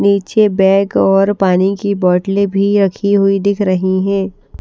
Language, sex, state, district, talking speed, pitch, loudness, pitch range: Hindi, female, Haryana, Rohtak, 155 wpm, 195 Hz, -13 LUFS, 190-200 Hz